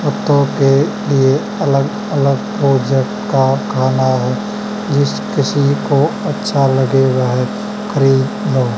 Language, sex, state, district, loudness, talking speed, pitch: Hindi, male, Haryana, Charkhi Dadri, -15 LUFS, 110 wpm, 135 Hz